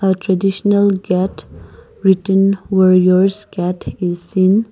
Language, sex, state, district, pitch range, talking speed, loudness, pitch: English, female, Nagaland, Kohima, 185-195 Hz, 100 wpm, -15 LUFS, 190 Hz